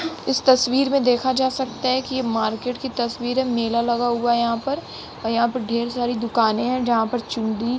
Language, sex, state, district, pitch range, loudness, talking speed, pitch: Hindi, female, Uttar Pradesh, Jalaun, 235-260 Hz, -21 LUFS, 230 wpm, 245 Hz